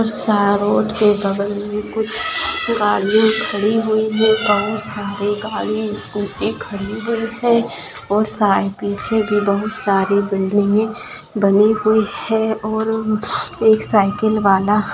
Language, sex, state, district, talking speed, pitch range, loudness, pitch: Hindi, female, Bihar, Gaya, 130 wpm, 205-220 Hz, -17 LUFS, 215 Hz